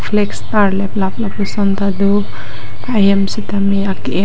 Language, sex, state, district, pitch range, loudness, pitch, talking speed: Karbi, female, Assam, Karbi Anglong, 195-205 Hz, -16 LUFS, 200 Hz, 125 wpm